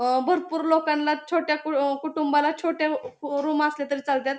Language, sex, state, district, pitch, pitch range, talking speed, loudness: Marathi, female, Maharashtra, Pune, 300 Hz, 280-320 Hz, 150 wpm, -24 LUFS